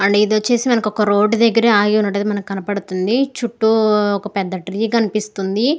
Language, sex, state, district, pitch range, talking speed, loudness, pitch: Telugu, female, Andhra Pradesh, Guntur, 200-230 Hz, 175 wpm, -17 LUFS, 210 Hz